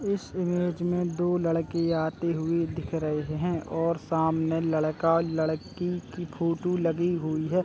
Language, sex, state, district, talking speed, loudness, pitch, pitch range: Hindi, male, Chhattisgarh, Raigarh, 165 wpm, -28 LUFS, 165 Hz, 160-175 Hz